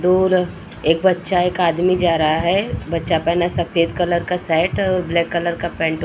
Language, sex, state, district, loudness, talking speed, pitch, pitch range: Hindi, female, Uttar Pradesh, Muzaffarnagar, -18 LUFS, 200 wpm, 175 Hz, 170-180 Hz